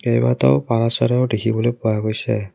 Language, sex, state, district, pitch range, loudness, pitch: Assamese, male, Assam, Kamrup Metropolitan, 105-120 Hz, -19 LUFS, 115 Hz